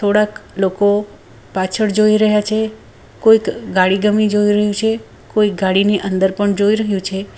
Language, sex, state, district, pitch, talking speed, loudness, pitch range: Gujarati, female, Gujarat, Valsad, 205 Hz, 155 wpm, -16 LUFS, 195-215 Hz